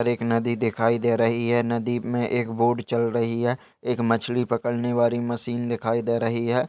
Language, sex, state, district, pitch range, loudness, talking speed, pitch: Hindi, male, Goa, North and South Goa, 115-120 Hz, -24 LUFS, 195 wpm, 120 Hz